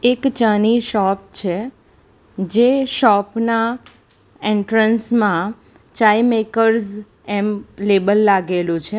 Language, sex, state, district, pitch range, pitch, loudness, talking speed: Gujarati, female, Gujarat, Valsad, 200-230 Hz, 215 Hz, -17 LUFS, 100 wpm